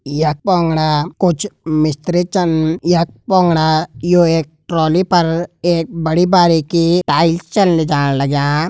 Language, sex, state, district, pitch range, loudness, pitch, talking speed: Garhwali, male, Uttarakhand, Uttarkashi, 155-175 Hz, -15 LUFS, 165 Hz, 125 wpm